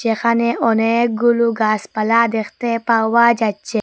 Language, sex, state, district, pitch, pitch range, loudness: Bengali, female, Assam, Hailakandi, 230 Hz, 220-235 Hz, -16 LUFS